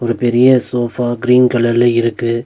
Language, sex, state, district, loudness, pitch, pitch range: Tamil, male, Tamil Nadu, Nilgiris, -13 LUFS, 120 Hz, 120-125 Hz